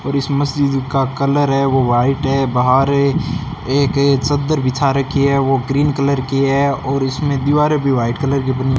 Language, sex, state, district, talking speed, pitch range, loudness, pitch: Hindi, male, Rajasthan, Bikaner, 200 wpm, 135-140 Hz, -16 LUFS, 140 Hz